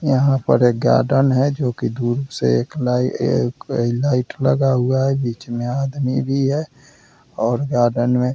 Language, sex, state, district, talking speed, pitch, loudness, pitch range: Hindi, male, Bihar, Vaishali, 180 wpm, 130 Hz, -19 LUFS, 120-135 Hz